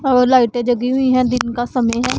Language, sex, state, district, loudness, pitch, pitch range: Hindi, female, Punjab, Pathankot, -16 LUFS, 250 Hz, 240-255 Hz